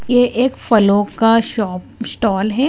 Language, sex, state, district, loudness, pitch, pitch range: Hindi, female, Himachal Pradesh, Shimla, -15 LUFS, 225 Hz, 205-245 Hz